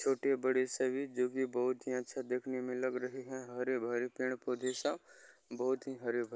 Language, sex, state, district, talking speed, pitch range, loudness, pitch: Maithili, male, Bihar, Bhagalpur, 210 wpm, 125-130 Hz, -37 LUFS, 130 Hz